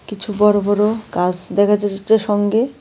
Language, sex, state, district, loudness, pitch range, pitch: Bengali, female, Tripura, West Tripura, -16 LUFS, 205-215 Hz, 210 Hz